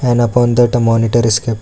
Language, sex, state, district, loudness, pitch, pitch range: English, male, Karnataka, Bangalore, -13 LUFS, 120 Hz, 115-120 Hz